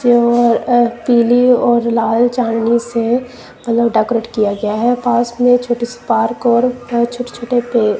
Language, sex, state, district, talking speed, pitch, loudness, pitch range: Hindi, female, Punjab, Kapurthala, 140 wpm, 240 Hz, -14 LUFS, 230-245 Hz